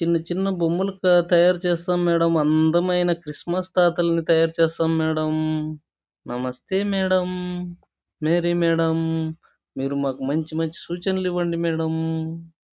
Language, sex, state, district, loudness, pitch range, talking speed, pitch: Telugu, male, Andhra Pradesh, Chittoor, -22 LUFS, 160-180 Hz, 120 wpm, 165 Hz